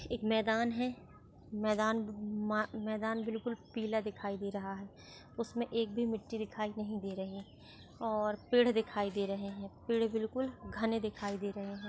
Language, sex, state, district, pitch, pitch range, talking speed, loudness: Marathi, female, Maharashtra, Sindhudurg, 215 Hz, 205-225 Hz, 170 wpm, -36 LUFS